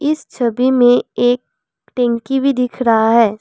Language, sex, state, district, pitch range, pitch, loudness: Hindi, female, Assam, Kamrup Metropolitan, 235-260 Hz, 245 Hz, -15 LUFS